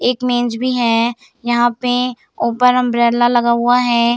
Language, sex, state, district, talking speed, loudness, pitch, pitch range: Hindi, female, Bihar, Samastipur, 160 wpm, -15 LUFS, 240 Hz, 235-250 Hz